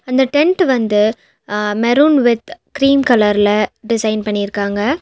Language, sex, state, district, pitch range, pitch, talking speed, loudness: Tamil, female, Tamil Nadu, Nilgiris, 210-275 Hz, 230 Hz, 130 wpm, -14 LUFS